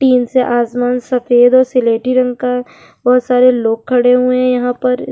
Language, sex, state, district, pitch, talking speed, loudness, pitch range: Hindi, female, Uttarakhand, Tehri Garhwal, 250 Hz, 185 wpm, -13 LUFS, 245-255 Hz